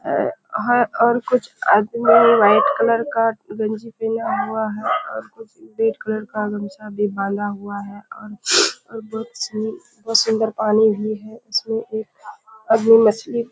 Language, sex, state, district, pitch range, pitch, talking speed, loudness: Hindi, female, Bihar, Kishanganj, 210-230 Hz, 220 Hz, 130 wpm, -19 LUFS